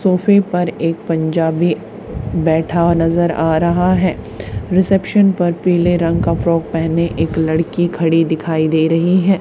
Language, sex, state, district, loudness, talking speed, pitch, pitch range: Hindi, female, Haryana, Charkhi Dadri, -15 LUFS, 155 wpm, 165 Hz, 160-175 Hz